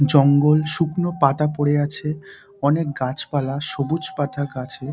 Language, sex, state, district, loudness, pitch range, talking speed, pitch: Bengali, male, West Bengal, Dakshin Dinajpur, -20 LUFS, 140-155 Hz, 120 wpm, 145 Hz